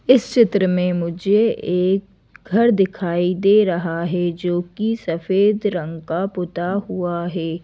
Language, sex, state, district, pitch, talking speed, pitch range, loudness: Hindi, female, Madhya Pradesh, Bhopal, 180 Hz, 140 wpm, 175-205 Hz, -19 LUFS